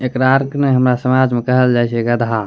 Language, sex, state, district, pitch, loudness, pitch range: Angika, male, Bihar, Bhagalpur, 125 Hz, -14 LUFS, 120-130 Hz